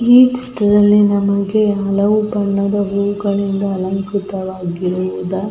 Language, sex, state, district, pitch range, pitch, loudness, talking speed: Kannada, female, Karnataka, Belgaum, 195-205 Hz, 200 Hz, -16 LUFS, 110 wpm